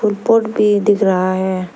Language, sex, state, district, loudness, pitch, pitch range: Hindi, female, Arunachal Pradesh, Lower Dibang Valley, -15 LUFS, 205 Hz, 185-215 Hz